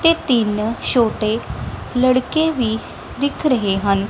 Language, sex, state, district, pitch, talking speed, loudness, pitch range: Punjabi, female, Punjab, Kapurthala, 240 Hz, 115 wpm, -19 LUFS, 215-280 Hz